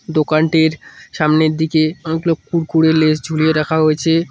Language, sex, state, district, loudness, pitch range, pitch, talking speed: Bengali, male, West Bengal, Cooch Behar, -15 LUFS, 155-160 Hz, 160 Hz, 125 wpm